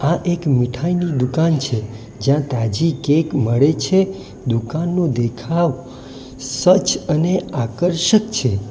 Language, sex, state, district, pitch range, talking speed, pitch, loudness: Gujarati, male, Gujarat, Valsad, 125-170 Hz, 110 wpm, 145 Hz, -18 LUFS